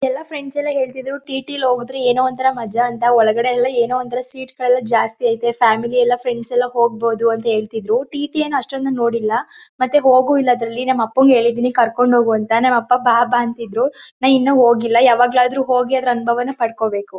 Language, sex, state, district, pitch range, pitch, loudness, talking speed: Kannada, female, Karnataka, Mysore, 235-260 Hz, 245 Hz, -16 LUFS, 185 wpm